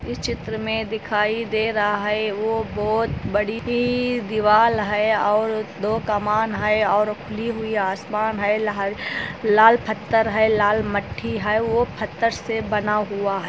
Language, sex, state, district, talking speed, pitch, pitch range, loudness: Hindi, female, Andhra Pradesh, Anantapur, 135 wpm, 215 Hz, 210-220 Hz, -21 LUFS